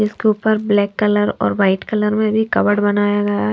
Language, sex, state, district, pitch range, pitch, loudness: Hindi, female, Haryana, Charkhi Dadri, 205-215 Hz, 205 Hz, -16 LUFS